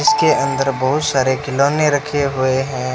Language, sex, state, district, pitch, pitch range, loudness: Hindi, male, Rajasthan, Bikaner, 140 Hz, 130-145 Hz, -17 LUFS